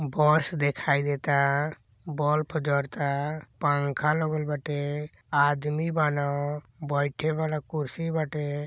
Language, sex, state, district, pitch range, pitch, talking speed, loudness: Bhojpuri, male, Uttar Pradesh, Gorakhpur, 145-155 Hz, 145 Hz, 105 wpm, -27 LUFS